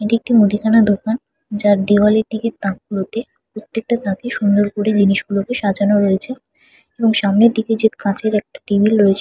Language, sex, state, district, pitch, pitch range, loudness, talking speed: Bengali, female, West Bengal, Purulia, 215 Hz, 200-225 Hz, -16 LUFS, 150 wpm